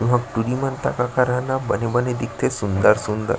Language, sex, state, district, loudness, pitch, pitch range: Chhattisgarhi, male, Chhattisgarh, Sarguja, -21 LUFS, 120 Hz, 115-125 Hz